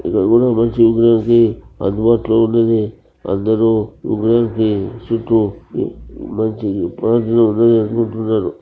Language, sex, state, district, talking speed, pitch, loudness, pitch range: Telugu, male, Andhra Pradesh, Krishna, 85 wpm, 115 Hz, -15 LUFS, 110-115 Hz